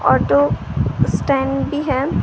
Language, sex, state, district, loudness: Hindi, female, Maharashtra, Gondia, -18 LUFS